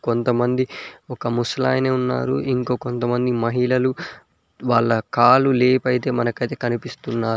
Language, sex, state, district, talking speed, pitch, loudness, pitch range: Telugu, male, Telangana, Mahabubabad, 100 wpm, 125 Hz, -20 LUFS, 120-130 Hz